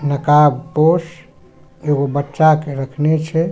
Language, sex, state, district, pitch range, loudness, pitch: Maithili, male, Bihar, Supaul, 145-160 Hz, -16 LUFS, 150 Hz